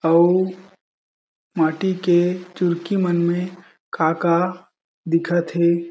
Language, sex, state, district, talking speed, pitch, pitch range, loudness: Chhattisgarhi, male, Chhattisgarh, Jashpur, 90 wpm, 175 Hz, 165-180 Hz, -20 LUFS